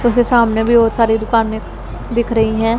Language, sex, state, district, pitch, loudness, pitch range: Hindi, female, Punjab, Pathankot, 230 Hz, -14 LUFS, 220-235 Hz